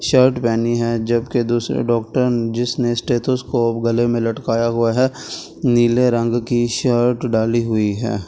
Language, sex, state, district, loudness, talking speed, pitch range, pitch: Hindi, male, Delhi, New Delhi, -18 LUFS, 165 wpm, 115-120 Hz, 120 Hz